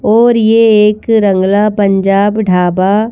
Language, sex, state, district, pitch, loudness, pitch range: Hindi, female, Madhya Pradesh, Bhopal, 210 Hz, -10 LUFS, 195-220 Hz